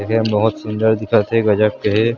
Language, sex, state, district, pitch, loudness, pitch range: Chhattisgarhi, male, Chhattisgarh, Sarguja, 110 Hz, -16 LUFS, 105-115 Hz